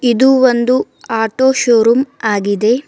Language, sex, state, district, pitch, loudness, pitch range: Kannada, female, Karnataka, Bidar, 240 Hz, -13 LUFS, 225-260 Hz